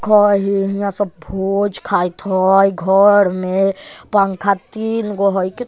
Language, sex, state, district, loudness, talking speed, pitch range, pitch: Bajjika, male, Bihar, Vaishali, -16 LUFS, 160 wpm, 190-205 Hz, 195 Hz